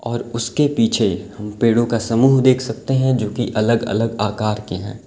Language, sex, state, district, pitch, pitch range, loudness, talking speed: Hindi, male, Uttar Pradesh, Lalitpur, 115 Hz, 105-125 Hz, -18 LUFS, 200 wpm